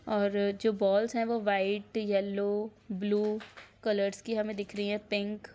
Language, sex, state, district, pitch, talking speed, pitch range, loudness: Hindi, female, Bihar, Araria, 205 Hz, 160 wpm, 200-215 Hz, -31 LUFS